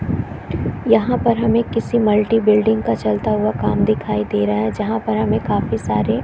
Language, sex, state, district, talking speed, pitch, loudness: Hindi, female, Chhattisgarh, Korba, 190 wpm, 215 Hz, -18 LUFS